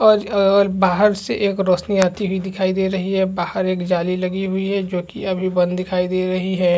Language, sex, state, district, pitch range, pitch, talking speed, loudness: Hindi, male, Chhattisgarh, Rajnandgaon, 185-195 Hz, 190 Hz, 250 wpm, -19 LUFS